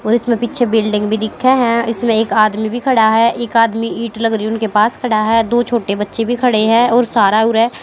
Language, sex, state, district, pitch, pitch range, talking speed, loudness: Hindi, female, Haryana, Jhajjar, 230 Hz, 220-235 Hz, 255 wpm, -14 LUFS